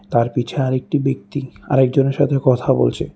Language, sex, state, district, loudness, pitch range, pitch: Bengali, male, Tripura, West Tripura, -18 LUFS, 130-140 Hz, 135 Hz